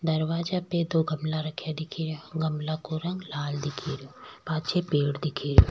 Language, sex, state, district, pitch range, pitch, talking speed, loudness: Rajasthani, female, Rajasthan, Churu, 145-160 Hz, 155 Hz, 180 wpm, -29 LUFS